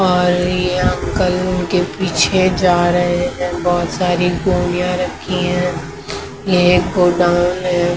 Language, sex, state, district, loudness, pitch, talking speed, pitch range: Hindi, female, Maharashtra, Mumbai Suburban, -16 LUFS, 180 Hz, 135 wpm, 175-180 Hz